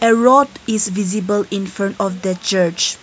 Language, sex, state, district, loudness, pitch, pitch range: English, female, Nagaland, Kohima, -17 LUFS, 205 Hz, 190-220 Hz